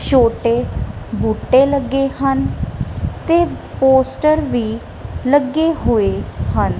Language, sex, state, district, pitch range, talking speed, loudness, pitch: Punjabi, female, Punjab, Kapurthala, 230-280 Hz, 90 wpm, -17 LUFS, 265 Hz